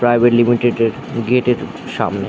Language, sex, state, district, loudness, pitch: Bengali, male, West Bengal, Dakshin Dinajpur, -16 LUFS, 120 Hz